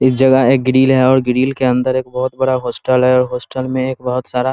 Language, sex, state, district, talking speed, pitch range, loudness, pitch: Hindi, male, Bihar, Muzaffarpur, 265 wpm, 125-130 Hz, -14 LUFS, 130 Hz